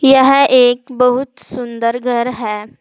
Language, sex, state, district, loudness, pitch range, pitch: Hindi, female, Uttar Pradesh, Saharanpur, -13 LUFS, 235-260 Hz, 250 Hz